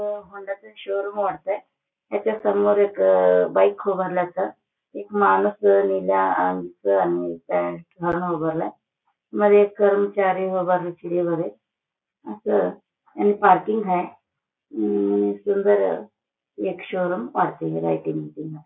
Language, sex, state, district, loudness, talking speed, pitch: Marathi, female, Maharashtra, Solapur, -22 LUFS, 85 wpm, 180 Hz